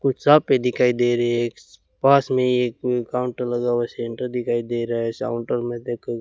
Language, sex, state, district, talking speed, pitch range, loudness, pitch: Hindi, male, Rajasthan, Bikaner, 210 wpm, 120-125 Hz, -21 LUFS, 120 Hz